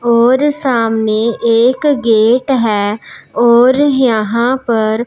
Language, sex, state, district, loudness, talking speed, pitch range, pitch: Hindi, male, Punjab, Pathankot, -12 LUFS, 95 wpm, 225-255 Hz, 235 Hz